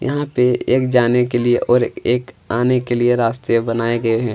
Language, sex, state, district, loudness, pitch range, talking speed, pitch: Hindi, male, Chhattisgarh, Kabirdham, -17 LUFS, 115-125 Hz, 205 wpm, 120 Hz